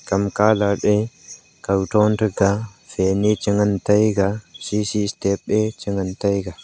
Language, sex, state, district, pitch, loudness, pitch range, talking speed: Wancho, male, Arunachal Pradesh, Longding, 100 Hz, -20 LUFS, 100-105 Hz, 110 wpm